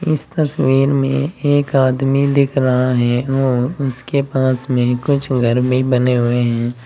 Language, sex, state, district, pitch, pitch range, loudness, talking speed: Hindi, male, Uttar Pradesh, Saharanpur, 130 Hz, 125-140 Hz, -16 LUFS, 150 wpm